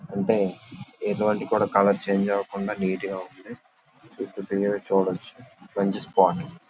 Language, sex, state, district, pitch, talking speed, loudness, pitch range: Telugu, male, Andhra Pradesh, Visakhapatnam, 100 Hz, 115 wpm, -25 LUFS, 95-105 Hz